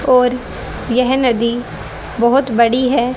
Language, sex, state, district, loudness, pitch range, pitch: Hindi, female, Haryana, Jhajjar, -15 LUFS, 235-255 Hz, 250 Hz